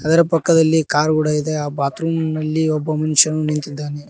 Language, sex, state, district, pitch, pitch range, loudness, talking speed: Kannada, male, Karnataka, Koppal, 155 Hz, 150-160 Hz, -17 LUFS, 160 wpm